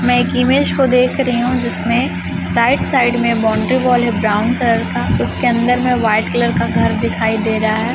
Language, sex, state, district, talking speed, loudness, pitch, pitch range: Hindi, female, Chhattisgarh, Raipur, 210 wpm, -15 LUFS, 235 Hz, 220-245 Hz